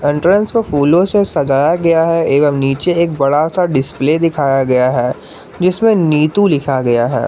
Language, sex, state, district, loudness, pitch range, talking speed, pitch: Hindi, male, Jharkhand, Garhwa, -13 LUFS, 135-175 Hz, 175 wpm, 150 Hz